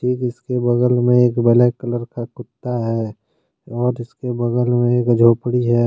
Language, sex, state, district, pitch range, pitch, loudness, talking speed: Hindi, male, Jharkhand, Deoghar, 120-125 Hz, 120 Hz, -17 LUFS, 165 wpm